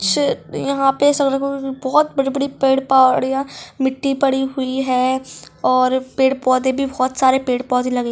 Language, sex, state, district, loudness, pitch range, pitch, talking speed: Hindi, female, Bihar, Jamui, -18 LUFS, 255-275 Hz, 265 Hz, 140 wpm